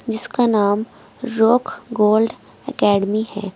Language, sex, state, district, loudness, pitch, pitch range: Hindi, female, Uttar Pradesh, Saharanpur, -18 LUFS, 220 Hz, 205-235 Hz